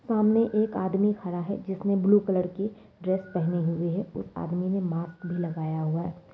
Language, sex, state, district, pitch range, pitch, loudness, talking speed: Hindi, female, Bihar, East Champaran, 170-200 Hz, 185 Hz, -28 LUFS, 200 wpm